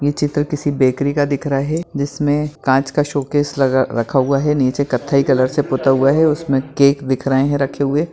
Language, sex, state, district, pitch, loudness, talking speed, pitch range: Hindi, male, Bihar, Madhepura, 140 Hz, -17 LUFS, 220 wpm, 135-145 Hz